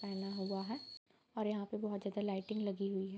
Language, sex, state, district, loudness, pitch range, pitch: Hindi, female, Bihar, Sitamarhi, -41 LUFS, 195-215 Hz, 200 Hz